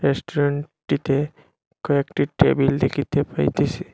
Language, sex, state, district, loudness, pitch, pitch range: Bengali, male, Assam, Hailakandi, -22 LUFS, 145 Hz, 140-150 Hz